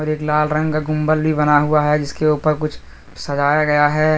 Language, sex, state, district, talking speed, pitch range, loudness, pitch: Hindi, male, Jharkhand, Deoghar, 215 wpm, 145-155 Hz, -17 LUFS, 150 Hz